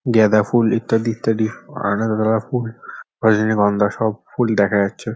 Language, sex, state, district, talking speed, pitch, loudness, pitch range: Bengali, male, West Bengal, North 24 Parganas, 150 wpm, 110 Hz, -18 LUFS, 105-115 Hz